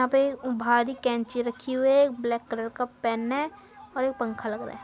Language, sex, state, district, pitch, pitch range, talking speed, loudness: Hindi, female, Uttar Pradesh, Muzaffarnagar, 250 Hz, 235-270 Hz, 235 wpm, -27 LUFS